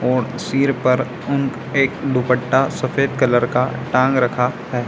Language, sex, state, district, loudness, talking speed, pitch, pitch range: Hindi, male, Bihar, Samastipur, -18 LUFS, 145 wpm, 130 Hz, 125-135 Hz